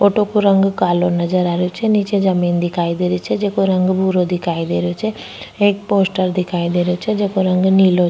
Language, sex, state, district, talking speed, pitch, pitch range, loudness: Rajasthani, female, Rajasthan, Nagaur, 215 wpm, 185 Hz, 175-200 Hz, -17 LUFS